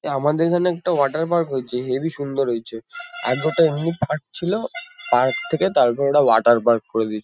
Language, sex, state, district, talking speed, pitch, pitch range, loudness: Bengali, male, West Bengal, Kolkata, 200 wpm, 150 Hz, 125-170 Hz, -20 LUFS